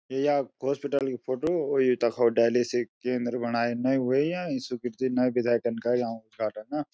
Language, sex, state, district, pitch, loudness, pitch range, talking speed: Garhwali, male, Uttarakhand, Uttarkashi, 125 Hz, -27 LUFS, 120-135 Hz, 190 wpm